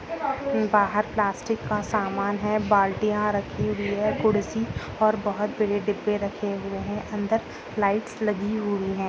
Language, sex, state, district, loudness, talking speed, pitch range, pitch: Hindi, female, Uttar Pradesh, Budaun, -25 LUFS, 145 wpm, 205-215 Hz, 210 Hz